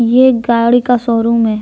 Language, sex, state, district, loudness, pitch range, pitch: Hindi, female, Jharkhand, Deoghar, -12 LUFS, 230-245 Hz, 235 Hz